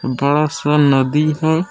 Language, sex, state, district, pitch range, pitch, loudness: Hindi, male, Jharkhand, Palamu, 140-155 Hz, 150 Hz, -15 LUFS